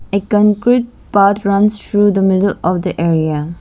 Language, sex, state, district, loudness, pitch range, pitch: English, female, Arunachal Pradesh, Lower Dibang Valley, -14 LUFS, 180-210 Hz, 200 Hz